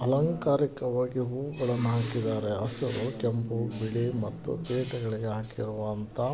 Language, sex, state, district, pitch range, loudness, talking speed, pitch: Kannada, male, Karnataka, Gulbarga, 110-130 Hz, -30 LUFS, 85 wpm, 120 Hz